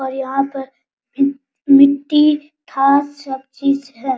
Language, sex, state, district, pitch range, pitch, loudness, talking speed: Hindi, female, Bihar, Araria, 270-285 Hz, 275 Hz, -16 LUFS, 130 wpm